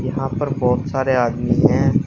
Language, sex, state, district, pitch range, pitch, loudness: Hindi, male, Uttar Pradesh, Shamli, 125-135 Hz, 130 Hz, -18 LUFS